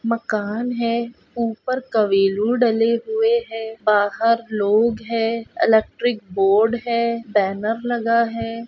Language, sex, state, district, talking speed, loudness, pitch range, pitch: Hindi, female, Goa, North and South Goa, 110 wpm, -20 LUFS, 215-235 Hz, 230 Hz